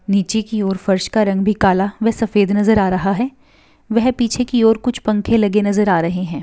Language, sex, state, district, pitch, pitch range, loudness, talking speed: Hindi, female, Maharashtra, Nagpur, 210 Hz, 195-225 Hz, -16 LUFS, 235 wpm